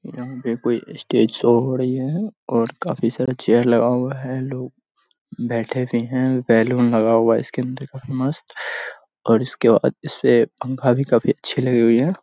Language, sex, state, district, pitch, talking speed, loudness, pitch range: Hindi, female, Bihar, Sitamarhi, 125 Hz, 185 wpm, -20 LUFS, 115-130 Hz